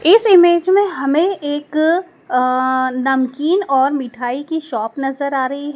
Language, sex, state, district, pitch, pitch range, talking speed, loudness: Hindi, female, Madhya Pradesh, Dhar, 285 Hz, 260-345 Hz, 145 wpm, -16 LUFS